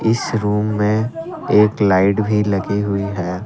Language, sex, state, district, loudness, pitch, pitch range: Hindi, male, Assam, Kamrup Metropolitan, -17 LUFS, 105 Hz, 100-110 Hz